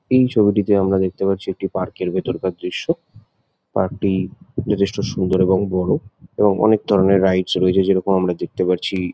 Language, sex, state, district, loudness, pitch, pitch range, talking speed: Bengali, male, West Bengal, Jalpaiguri, -19 LUFS, 95 Hz, 95-105 Hz, 165 wpm